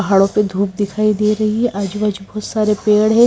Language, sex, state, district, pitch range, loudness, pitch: Hindi, female, Himachal Pradesh, Shimla, 200-215 Hz, -17 LUFS, 210 Hz